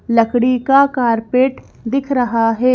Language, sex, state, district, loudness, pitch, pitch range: Hindi, female, Madhya Pradesh, Bhopal, -15 LUFS, 250 Hz, 230-265 Hz